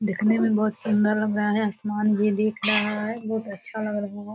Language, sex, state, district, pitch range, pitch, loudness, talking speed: Hindi, female, Bihar, Purnia, 210-215 Hz, 210 Hz, -22 LUFS, 235 wpm